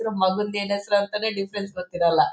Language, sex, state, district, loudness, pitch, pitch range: Kannada, male, Karnataka, Bellary, -24 LUFS, 200 Hz, 190-210 Hz